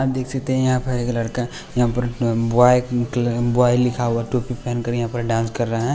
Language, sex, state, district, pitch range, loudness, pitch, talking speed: Hindi, male, Bihar, West Champaran, 120-125 Hz, -20 LUFS, 120 Hz, 210 wpm